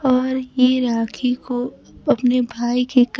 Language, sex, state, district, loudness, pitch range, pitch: Hindi, female, Bihar, Kaimur, -19 LUFS, 245-255 Hz, 250 Hz